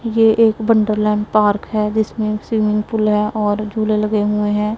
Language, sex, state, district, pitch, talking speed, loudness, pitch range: Hindi, female, Punjab, Pathankot, 215 Hz, 175 wpm, -17 LUFS, 210-220 Hz